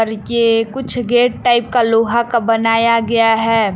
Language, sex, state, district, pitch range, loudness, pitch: Hindi, female, Jharkhand, Palamu, 225-235 Hz, -14 LUFS, 230 Hz